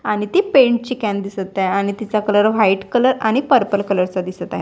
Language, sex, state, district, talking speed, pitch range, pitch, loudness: Marathi, female, Maharashtra, Washim, 235 wpm, 195-240 Hz, 210 Hz, -17 LUFS